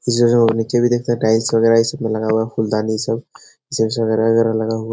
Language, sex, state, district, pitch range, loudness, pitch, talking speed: Hindi, male, Bihar, Jahanabad, 110-120 Hz, -17 LUFS, 115 Hz, 205 wpm